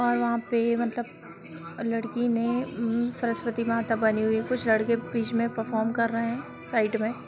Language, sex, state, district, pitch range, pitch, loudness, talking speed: Hindi, female, Bihar, Sitamarhi, 225-235 Hz, 230 Hz, -27 LUFS, 180 wpm